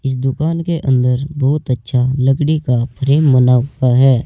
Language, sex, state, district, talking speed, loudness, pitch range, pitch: Hindi, male, Uttar Pradesh, Saharanpur, 170 wpm, -15 LUFS, 125-145 Hz, 135 Hz